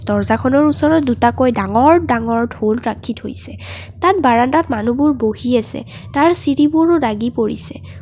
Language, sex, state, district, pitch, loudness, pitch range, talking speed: Assamese, female, Assam, Kamrup Metropolitan, 240 Hz, -15 LUFS, 225-295 Hz, 125 wpm